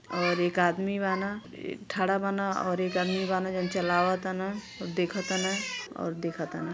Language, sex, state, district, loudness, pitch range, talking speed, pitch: Bhojpuri, female, Uttar Pradesh, Gorakhpur, -29 LUFS, 175-195 Hz, 180 wpm, 185 Hz